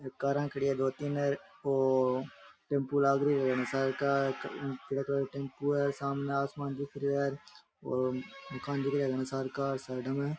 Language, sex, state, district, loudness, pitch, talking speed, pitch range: Rajasthani, male, Rajasthan, Nagaur, -32 LUFS, 140 Hz, 195 wpm, 135-140 Hz